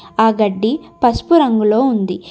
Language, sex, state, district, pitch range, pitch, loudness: Telugu, female, Telangana, Komaram Bheem, 210-260 Hz, 220 Hz, -15 LUFS